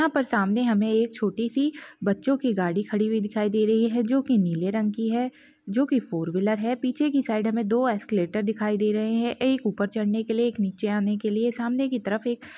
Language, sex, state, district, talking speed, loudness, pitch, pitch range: Hindi, female, Chhattisgarh, Balrampur, 230 wpm, -25 LUFS, 225 Hz, 210-245 Hz